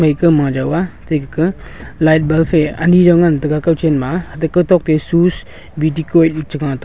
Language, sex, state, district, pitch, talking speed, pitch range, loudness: Wancho, male, Arunachal Pradesh, Longding, 160 Hz, 195 wpm, 150-170 Hz, -14 LUFS